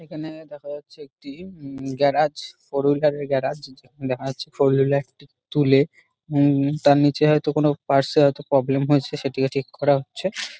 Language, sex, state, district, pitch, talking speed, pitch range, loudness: Bengali, male, West Bengal, Dakshin Dinajpur, 145 Hz, 180 wpm, 135-150 Hz, -21 LUFS